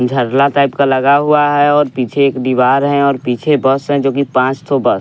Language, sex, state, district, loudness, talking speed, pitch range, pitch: Hindi, male, Bihar, West Champaran, -13 LUFS, 240 wpm, 130-145 Hz, 140 Hz